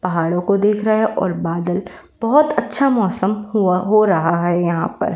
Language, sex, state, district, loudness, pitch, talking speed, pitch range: Hindi, female, Uttar Pradesh, Varanasi, -17 LUFS, 195 Hz, 185 wpm, 175-215 Hz